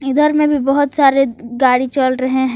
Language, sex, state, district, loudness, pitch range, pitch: Hindi, female, Jharkhand, Palamu, -14 LUFS, 260-285 Hz, 270 Hz